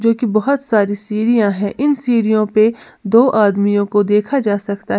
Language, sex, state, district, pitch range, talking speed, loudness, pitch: Hindi, female, Uttar Pradesh, Lalitpur, 205-235 Hz, 190 wpm, -15 LUFS, 215 Hz